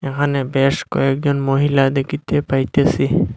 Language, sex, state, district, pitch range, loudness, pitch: Bengali, male, Assam, Hailakandi, 135-140 Hz, -17 LUFS, 135 Hz